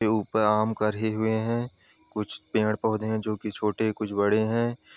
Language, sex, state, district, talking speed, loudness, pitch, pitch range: Hindi, male, Uttar Pradesh, Ghazipur, 205 wpm, -26 LUFS, 110 Hz, 105-110 Hz